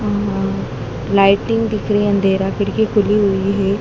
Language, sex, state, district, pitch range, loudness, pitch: Hindi, female, Madhya Pradesh, Dhar, 195-210 Hz, -17 LUFS, 200 Hz